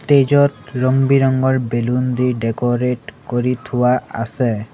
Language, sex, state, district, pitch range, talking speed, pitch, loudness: Assamese, male, Assam, Sonitpur, 120-130 Hz, 125 wpm, 125 Hz, -17 LUFS